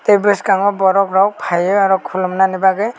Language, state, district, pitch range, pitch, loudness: Kokborok, Tripura, West Tripura, 190-200 Hz, 195 Hz, -14 LUFS